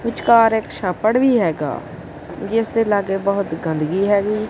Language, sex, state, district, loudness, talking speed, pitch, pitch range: Punjabi, female, Punjab, Kapurthala, -18 LUFS, 145 wpm, 205 Hz, 190-225 Hz